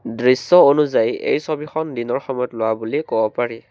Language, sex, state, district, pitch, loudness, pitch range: Assamese, male, Assam, Kamrup Metropolitan, 125 Hz, -18 LUFS, 115-150 Hz